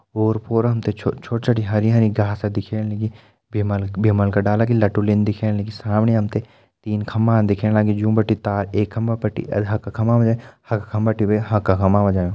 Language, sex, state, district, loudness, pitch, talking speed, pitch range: Hindi, male, Uttarakhand, Tehri Garhwal, -20 LUFS, 105 Hz, 210 wpm, 105-110 Hz